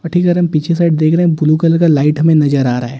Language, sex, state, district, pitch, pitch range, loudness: Hindi, male, Delhi, New Delhi, 160 Hz, 150-170 Hz, -12 LUFS